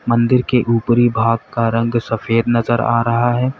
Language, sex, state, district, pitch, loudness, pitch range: Hindi, male, Uttar Pradesh, Lalitpur, 115 Hz, -16 LUFS, 115-120 Hz